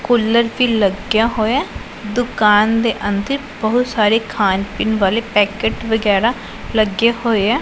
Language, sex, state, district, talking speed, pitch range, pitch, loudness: Punjabi, female, Punjab, Pathankot, 140 wpm, 210-235 Hz, 220 Hz, -16 LUFS